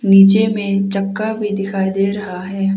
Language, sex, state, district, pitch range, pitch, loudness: Hindi, female, Arunachal Pradesh, Papum Pare, 195-205 Hz, 195 Hz, -16 LUFS